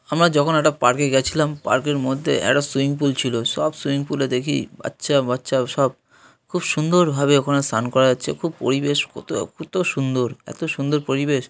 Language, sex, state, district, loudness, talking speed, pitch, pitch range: Bengali, male, West Bengal, North 24 Parganas, -20 LUFS, 175 wpm, 140 Hz, 130-150 Hz